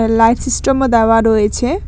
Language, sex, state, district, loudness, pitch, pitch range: Bengali, female, West Bengal, Alipurduar, -13 LUFS, 225 Hz, 225-250 Hz